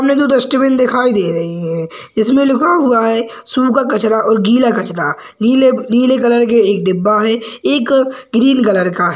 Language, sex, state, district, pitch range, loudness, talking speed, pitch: Hindi, male, Chhattisgarh, Sarguja, 210-260 Hz, -13 LUFS, 190 wpm, 235 Hz